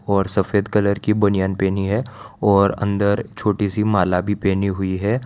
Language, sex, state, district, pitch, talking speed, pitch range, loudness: Hindi, male, Gujarat, Valsad, 100 Hz, 180 wpm, 95-105 Hz, -19 LUFS